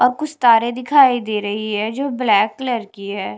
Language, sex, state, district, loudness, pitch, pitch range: Hindi, female, Punjab, Kapurthala, -17 LUFS, 230 Hz, 210-255 Hz